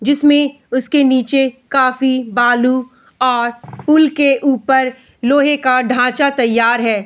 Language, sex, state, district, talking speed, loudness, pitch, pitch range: Hindi, female, Bihar, Bhagalpur, 120 wpm, -14 LUFS, 260 Hz, 250-280 Hz